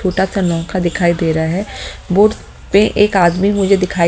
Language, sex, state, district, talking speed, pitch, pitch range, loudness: Hindi, female, Delhi, New Delhi, 205 wpm, 185 Hz, 170-195 Hz, -14 LUFS